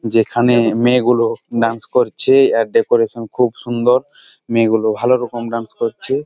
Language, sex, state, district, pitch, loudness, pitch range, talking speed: Bengali, male, West Bengal, Jalpaiguri, 120 Hz, -16 LUFS, 115-130 Hz, 145 wpm